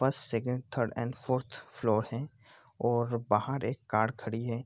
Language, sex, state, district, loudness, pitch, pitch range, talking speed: Hindi, male, Bihar, East Champaran, -32 LUFS, 120 Hz, 115-125 Hz, 165 wpm